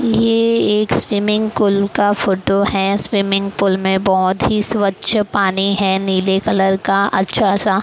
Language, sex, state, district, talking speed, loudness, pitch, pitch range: Hindi, female, Maharashtra, Mumbai Suburban, 155 wpm, -15 LUFS, 200 Hz, 195-210 Hz